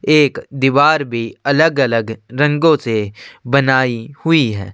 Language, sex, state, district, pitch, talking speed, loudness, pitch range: Hindi, male, Chhattisgarh, Sukma, 135 Hz, 115 wpm, -15 LUFS, 115-150 Hz